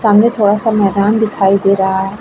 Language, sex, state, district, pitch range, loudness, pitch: Hindi, female, Bihar, Vaishali, 195-215 Hz, -12 LUFS, 205 Hz